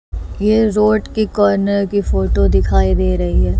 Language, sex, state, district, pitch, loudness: Hindi, female, Chhattisgarh, Raipur, 195 Hz, -15 LUFS